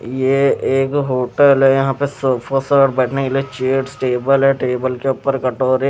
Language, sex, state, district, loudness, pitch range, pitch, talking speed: Hindi, male, Himachal Pradesh, Shimla, -16 LUFS, 130-135 Hz, 135 Hz, 185 wpm